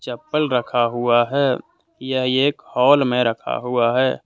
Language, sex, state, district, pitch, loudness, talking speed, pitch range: Hindi, male, Jharkhand, Deoghar, 125 Hz, -19 LUFS, 155 wpm, 120-135 Hz